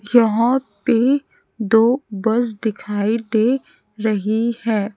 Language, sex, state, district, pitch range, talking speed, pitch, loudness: Hindi, female, Chhattisgarh, Raipur, 215-240 Hz, 95 wpm, 225 Hz, -19 LUFS